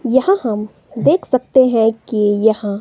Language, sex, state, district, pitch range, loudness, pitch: Hindi, female, Himachal Pradesh, Shimla, 215-260 Hz, -15 LUFS, 225 Hz